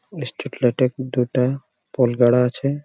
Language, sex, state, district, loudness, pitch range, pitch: Bengali, male, West Bengal, Jhargram, -20 LUFS, 125-135 Hz, 125 Hz